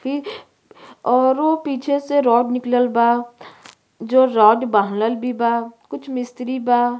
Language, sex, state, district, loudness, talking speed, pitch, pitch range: Bhojpuri, female, Uttar Pradesh, Ghazipur, -18 LUFS, 120 wpm, 245 Hz, 235-260 Hz